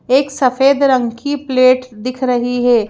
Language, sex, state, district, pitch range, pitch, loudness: Hindi, female, Madhya Pradesh, Bhopal, 245-270 Hz, 255 Hz, -14 LUFS